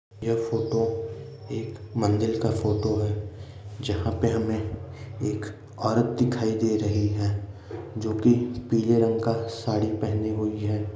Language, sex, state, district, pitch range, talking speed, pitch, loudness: Hindi, male, Uttar Pradesh, Ghazipur, 105-115 Hz, 135 wpm, 110 Hz, -26 LUFS